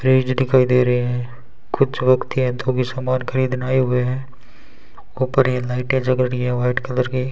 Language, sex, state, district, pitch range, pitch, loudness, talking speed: Hindi, male, Rajasthan, Bikaner, 125-130 Hz, 130 Hz, -19 LUFS, 180 wpm